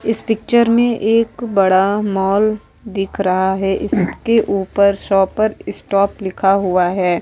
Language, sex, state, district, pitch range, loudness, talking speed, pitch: Hindi, female, Goa, North and South Goa, 195-220 Hz, -16 LUFS, 135 wpm, 200 Hz